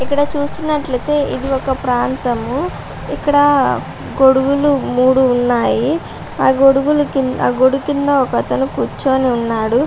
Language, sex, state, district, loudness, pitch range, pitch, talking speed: Telugu, female, Andhra Pradesh, Visakhapatnam, -15 LUFS, 255-285 Hz, 265 Hz, 110 wpm